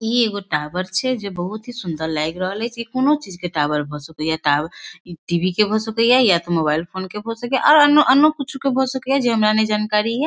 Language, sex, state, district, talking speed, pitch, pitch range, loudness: Maithili, female, Bihar, Darbhanga, 255 wpm, 210 Hz, 170-250 Hz, -19 LUFS